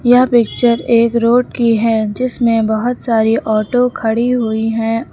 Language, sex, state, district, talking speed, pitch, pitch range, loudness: Hindi, female, Uttar Pradesh, Lucknow, 150 wpm, 235 Hz, 225-245 Hz, -14 LUFS